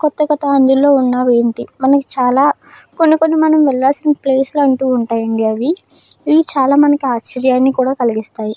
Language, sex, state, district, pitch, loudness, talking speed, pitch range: Telugu, female, Andhra Pradesh, Krishna, 265 Hz, -13 LUFS, 155 wpm, 250-290 Hz